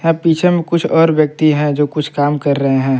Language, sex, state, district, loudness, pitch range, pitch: Hindi, male, Jharkhand, Palamu, -14 LUFS, 145-165 Hz, 150 Hz